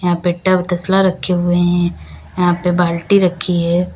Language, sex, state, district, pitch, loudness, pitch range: Hindi, female, Uttar Pradesh, Lalitpur, 175 Hz, -15 LUFS, 175-180 Hz